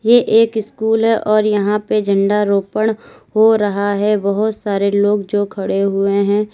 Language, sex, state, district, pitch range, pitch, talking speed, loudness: Hindi, female, Uttar Pradesh, Lalitpur, 200-220 Hz, 210 Hz, 175 wpm, -15 LUFS